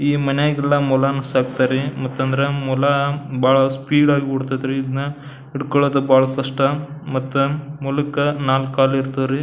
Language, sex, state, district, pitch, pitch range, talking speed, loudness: Kannada, male, Karnataka, Belgaum, 135 Hz, 135-145 Hz, 135 wpm, -19 LUFS